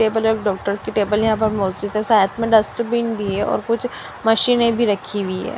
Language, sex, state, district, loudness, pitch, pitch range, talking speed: Hindi, female, Punjab, Fazilka, -19 LUFS, 220 Hz, 205-230 Hz, 205 wpm